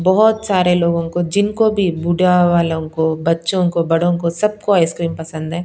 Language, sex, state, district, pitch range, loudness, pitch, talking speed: Hindi, female, Punjab, Pathankot, 165-190 Hz, -16 LUFS, 175 Hz, 180 wpm